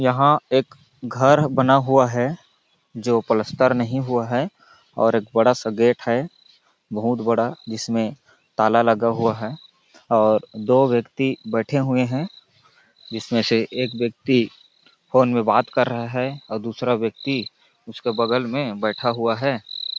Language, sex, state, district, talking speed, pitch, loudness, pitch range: Hindi, male, Chhattisgarh, Balrampur, 145 wpm, 120 Hz, -21 LUFS, 115-130 Hz